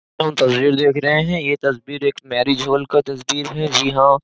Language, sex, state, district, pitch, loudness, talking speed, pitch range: Hindi, male, Uttar Pradesh, Jyotiba Phule Nagar, 140 Hz, -18 LUFS, 210 wpm, 135-145 Hz